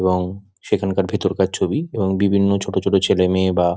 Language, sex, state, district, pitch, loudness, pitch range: Bengali, male, West Bengal, Dakshin Dinajpur, 95 Hz, -19 LUFS, 95-100 Hz